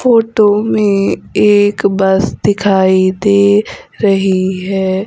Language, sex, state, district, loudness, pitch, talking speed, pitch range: Hindi, female, Madhya Pradesh, Umaria, -12 LUFS, 200 Hz, 95 wpm, 190-205 Hz